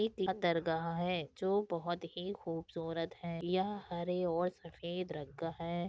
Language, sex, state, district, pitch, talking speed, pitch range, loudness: Hindi, female, Uttar Pradesh, Deoria, 175 Hz, 155 wpm, 165-180 Hz, -38 LUFS